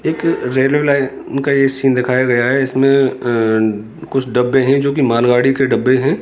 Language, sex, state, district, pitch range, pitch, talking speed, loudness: Hindi, male, Rajasthan, Jaipur, 125-135 Hz, 130 Hz, 185 wpm, -14 LUFS